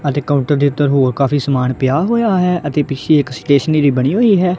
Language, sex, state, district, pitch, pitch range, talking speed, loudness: Punjabi, female, Punjab, Kapurthala, 145 Hz, 140-160 Hz, 220 wpm, -14 LUFS